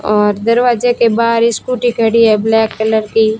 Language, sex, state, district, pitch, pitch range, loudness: Hindi, female, Rajasthan, Bikaner, 225 Hz, 220-235 Hz, -12 LUFS